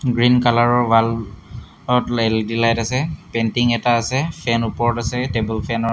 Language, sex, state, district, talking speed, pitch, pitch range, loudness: Assamese, male, Assam, Hailakandi, 150 wpm, 115 Hz, 115-120 Hz, -18 LUFS